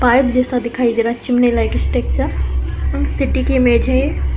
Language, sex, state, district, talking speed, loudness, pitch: Hindi, female, Uttar Pradesh, Hamirpur, 180 wpm, -16 LUFS, 230 Hz